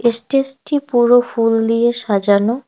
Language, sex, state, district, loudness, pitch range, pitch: Bengali, female, West Bengal, Cooch Behar, -15 LUFS, 225-250 Hz, 240 Hz